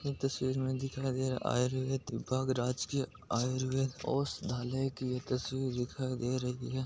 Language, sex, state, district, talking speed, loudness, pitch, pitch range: Marwari, male, Rajasthan, Nagaur, 150 wpm, -35 LUFS, 130 Hz, 125-135 Hz